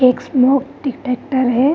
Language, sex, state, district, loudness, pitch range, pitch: Hindi, female, Bihar, Vaishali, -17 LUFS, 255-275 Hz, 260 Hz